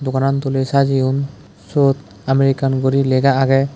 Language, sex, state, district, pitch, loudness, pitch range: Chakma, male, Tripura, West Tripura, 135 Hz, -17 LUFS, 130-140 Hz